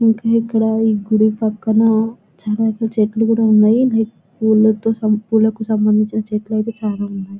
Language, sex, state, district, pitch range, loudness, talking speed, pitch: Telugu, female, Telangana, Nalgonda, 215-225 Hz, -16 LUFS, 120 wpm, 220 Hz